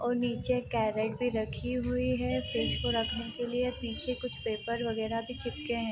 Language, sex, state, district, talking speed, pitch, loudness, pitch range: Hindi, female, Bihar, East Champaran, 205 wpm, 230 Hz, -32 LUFS, 215-245 Hz